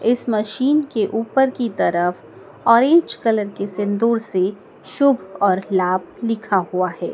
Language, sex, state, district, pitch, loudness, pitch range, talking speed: Hindi, female, Madhya Pradesh, Dhar, 215 Hz, -19 LUFS, 190-235 Hz, 145 wpm